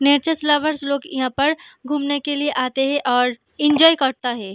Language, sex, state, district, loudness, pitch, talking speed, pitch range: Hindi, female, Jharkhand, Sahebganj, -19 LUFS, 285 Hz, 185 wpm, 255-295 Hz